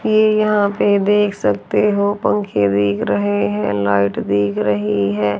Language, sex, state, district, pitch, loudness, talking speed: Hindi, female, Haryana, Jhajjar, 105 Hz, -17 LUFS, 165 wpm